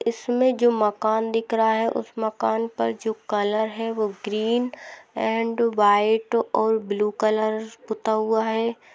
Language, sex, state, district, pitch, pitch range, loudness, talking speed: Hindi, female, Bihar, Saran, 220 Hz, 215-230 Hz, -23 LUFS, 135 wpm